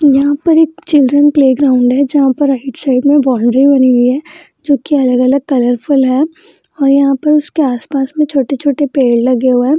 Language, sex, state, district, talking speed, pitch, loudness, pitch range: Hindi, female, Bihar, Jamui, 195 wpm, 275 Hz, -11 LUFS, 260-290 Hz